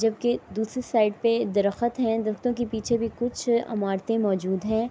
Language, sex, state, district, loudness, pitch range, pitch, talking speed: Urdu, female, Andhra Pradesh, Anantapur, -26 LUFS, 215-235 Hz, 225 Hz, 170 wpm